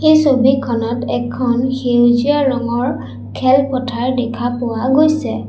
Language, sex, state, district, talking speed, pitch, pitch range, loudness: Assamese, female, Assam, Sonitpur, 100 wpm, 255 Hz, 240-270 Hz, -15 LUFS